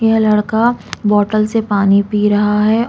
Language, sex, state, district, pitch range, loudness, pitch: Hindi, female, Uttarakhand, Uttarkashi, 205-225 Hz, -14 LUFS, 210 Hz